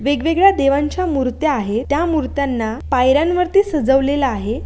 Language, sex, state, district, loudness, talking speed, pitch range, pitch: Marathi, female, Maharashtra, Aurangabad, -17 LUFS, 115 wpm, 255-315 Hz, 280 Hz